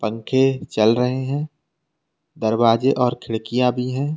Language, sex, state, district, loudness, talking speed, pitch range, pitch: Hindi, male, Uttar Pradesh, Lalitpur, -20 LUFS, 130 wpm, 115-140 Hz, 125 Hz